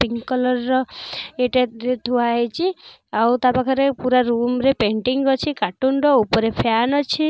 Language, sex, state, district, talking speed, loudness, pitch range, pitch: Odia, female, Odisha, Nuapada, 175 wpm, -19 LUFS, 235-270 Hz, 250 Hz